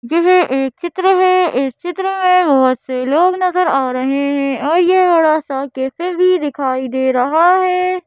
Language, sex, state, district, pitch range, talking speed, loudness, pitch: Hindi, female, Madhya Pradesh, Bhopal, 270-365 Hz, 180 wpm, -14 LUFS, 320 Hz